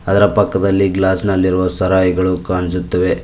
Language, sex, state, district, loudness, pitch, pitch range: Kannada, male, Karnataka, Koppal, -15 LUFS, 95 Hz, 90-95 Hz